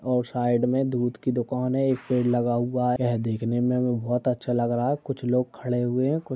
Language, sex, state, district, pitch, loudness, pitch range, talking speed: Hindi, male, Uttar Pradesh, Gorakhpur, 125 Hz, -25 LUFS, 120-125 Hz, 265 wpm